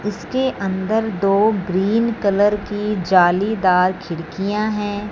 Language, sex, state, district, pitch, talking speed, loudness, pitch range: Hindi, female, Punjab, Fazilka, 205 Hz, 105 wpm, -18 LUFS, 190-215 Hz